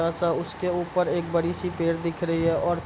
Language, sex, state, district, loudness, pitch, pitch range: Hindi, male, Bihar, Gopalganj, -26 LUFS, 170 Hz, 165-175 Hz